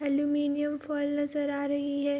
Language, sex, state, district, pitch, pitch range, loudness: Hindi, female, Bihar, Araria, 290 Hz, 285-290 Hz, -30 LUFS